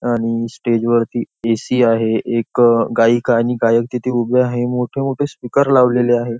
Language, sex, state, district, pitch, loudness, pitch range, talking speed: Marathi, male, Maharashtra, Nagpur, 120 Hz, -16 LUFS, 115-125 Hz, 160 wpm